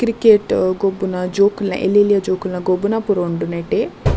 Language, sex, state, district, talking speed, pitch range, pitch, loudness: Tulu, female, Karnataka, Dakshina Kannada, 130 wpm, 185-205 Hz, 195 Hz, -17 LUFS